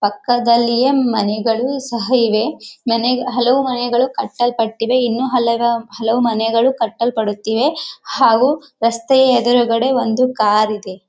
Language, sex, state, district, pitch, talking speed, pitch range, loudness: Kannada, female, Karnataka, Gulbarga, 235 Hz, 105 wpm, 225-255 Hz, -16 LUFS